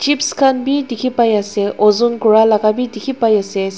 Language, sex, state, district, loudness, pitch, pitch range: Nagamese, female, Nagaland, Dimapur, -14 LUFS, 230 Hz, 210-255 Hz